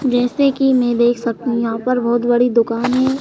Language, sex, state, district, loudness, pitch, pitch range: Hindi, female, Madhya Pradesh, Bhopal, -16 LUFS, 245 Hz, 235-255 Hz